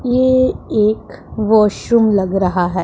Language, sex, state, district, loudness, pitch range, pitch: Hindi, female, Punjab, Pathankot, -15 LUFS, 195-240 Hz, 215 Hz